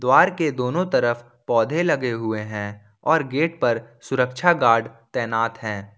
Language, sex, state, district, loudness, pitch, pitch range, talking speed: Hindi, male, Jharkhand, Ranchi, -22 LUFS, 120 Hz, 115-150 Hz, 150 wpm